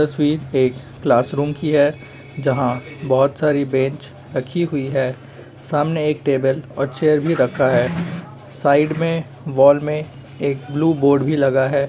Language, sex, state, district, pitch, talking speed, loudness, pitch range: Hindi, male, Uttar Pradesh, Jalaun, 140 Hz, 150 wpm, -19 LUFS, 135-150 Hz